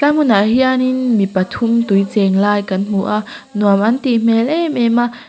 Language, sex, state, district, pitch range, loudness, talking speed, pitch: Mizo, female, Mizoram, Aizawl, 205-250 Hz, -15 LUFS, 205 wpm, 230 Hz